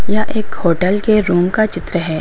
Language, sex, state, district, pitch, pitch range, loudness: Hindi, female, Uttar Pradesh, Lucknow, 190 Hz, 175-215 Hz, -16 LUFS